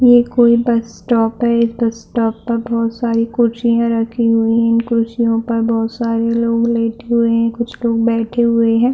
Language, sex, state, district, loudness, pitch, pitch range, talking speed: Hindi, female, Bihar, Saharsa, -15 LUFS, 230 Hz, 230-235 Hz, 180 wpm